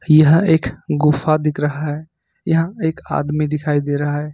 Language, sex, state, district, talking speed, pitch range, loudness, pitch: Hindi, male, Jharkhand, Ranchi, 180 wpm, 150-160 Hz, -17 LUFS, 150 Hz